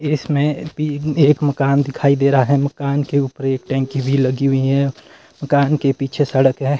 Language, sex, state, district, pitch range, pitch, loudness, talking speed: Hindi, male, Himachal Pradesh, Shimla, 135-145 Hz, 140 Hz, -17 LUFS, 195 wpm